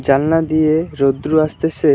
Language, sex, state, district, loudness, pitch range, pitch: Bengali, male, West Bengal, Alipurduar, -16 LUFS, 140-160 Hz, 155 Hz